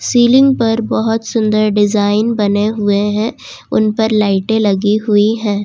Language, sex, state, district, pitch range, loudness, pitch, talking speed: Hindi, female, Jharkhand, Ranchi, 205-225 Hz, -13 LUFS, 215 Hz, 150 wpm